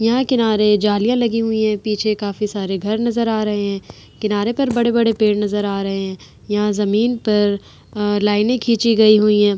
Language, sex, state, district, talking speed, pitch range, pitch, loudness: Hindi, female, Uttar Pradesh, Etah, 195 wpm, 205-230 Hz, 210 Hz, -17 LUFS